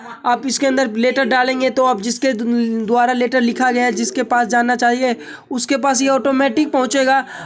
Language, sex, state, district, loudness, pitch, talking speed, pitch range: Hindi, male, Uttar Pradesh, Hamirpur, -16 LUFS, 255 Hz, 185 wpm, 240-270 Hz